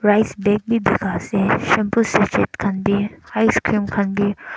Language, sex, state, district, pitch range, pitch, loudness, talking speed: Nagamese, male, Nagaland, Dimapur, 200-215 Hz, 205 Hz, -19 LUFS, 185 wpm